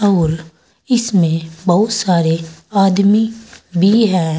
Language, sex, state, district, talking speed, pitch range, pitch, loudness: Hindi, female, Uttar Pradesh, Saharanpur, 95 wpm, 165-210 Hz, 185 Hz, -15 LUFS